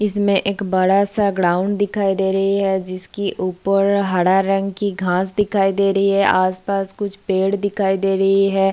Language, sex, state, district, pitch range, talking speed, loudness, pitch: Hindi, female, Bihar, Kishanganj, 190-200 Hz, 180 wpm, -18 LUFS, 195 Hz